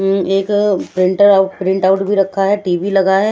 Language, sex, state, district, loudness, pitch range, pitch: Hindi, female, Delhi, New Delhi, -14 LUFS, 190-200 Hz, 195 Hz